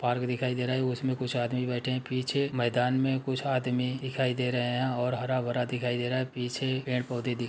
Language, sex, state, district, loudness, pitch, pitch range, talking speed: Hindi, male, Uttar Pradesh, Muzaffarnagar, -30 LUFS, 125 Hz, 125-130 Hz, 225 wpm